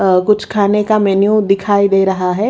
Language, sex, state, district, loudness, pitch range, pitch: Hindi, female, Haryana, Rohtak, -13 LUFS, 195-210 Hz, 200 Hz